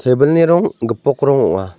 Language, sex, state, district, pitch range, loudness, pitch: Garo, male, Meghalaya, North Garo Hills, 115-150 Hz, -14 LUFS, 140 Hz